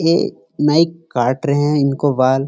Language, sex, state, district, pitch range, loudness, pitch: Hindi, male, Bihar, Gaya, 135-160 Hz, -17 LUFS, 145 Hz